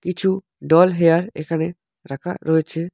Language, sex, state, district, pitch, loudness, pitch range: Bengali, male, West Bengal, Alipurduar, 170 Hz, -19 LUFS, 160-180 Hz